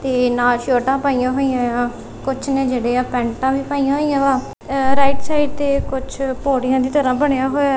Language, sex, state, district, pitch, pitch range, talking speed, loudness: Punjabi, female, Punjab, Kapurthala, 270 Hz, 255-275 Hz, 200 wpm, -18 LUFS